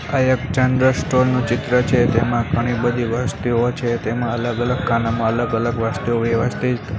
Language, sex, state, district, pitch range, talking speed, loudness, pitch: Gujarati, male, Gujarat, Gandhinagar, 115-125 Hz, 170 wpm, -19 LUFS, 120 Hz